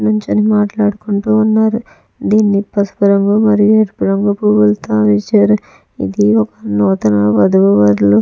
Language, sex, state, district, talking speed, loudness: Telugu, female, Andhra Pradesh, Chittoor, 110 wpm, -12 LUFS